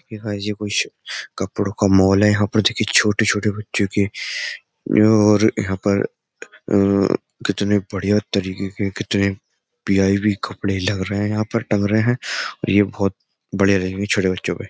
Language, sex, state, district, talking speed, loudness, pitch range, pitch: Hindi, male, Uttar Pradesh, Jyotiba Phule Nagar, 165 wpm, -19 LUFS, 100-105 Hz, 100 Hz